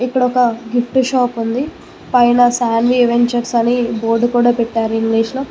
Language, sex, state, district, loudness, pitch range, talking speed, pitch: Telugu, female, Telangana, Mahabubabad, -15 LUFS, 230-250 Hz, 155 wpm, 240 Hz